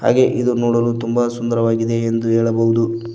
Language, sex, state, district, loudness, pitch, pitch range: Kannada, male, Karnataka, Koppal, -17 LUFS, 115 Hz, 115-120 Hz